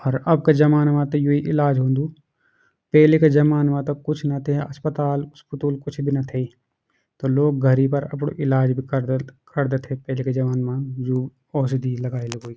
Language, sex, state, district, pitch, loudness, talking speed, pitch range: Garhwali, male, Uttarakhand, Uttarkashi, 140 Hz, -21 LUFS, 200 wpm, 130-145 Hz